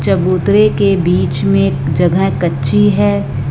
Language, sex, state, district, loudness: Hindi, female, Punjab, Fazilka, -13 LUFS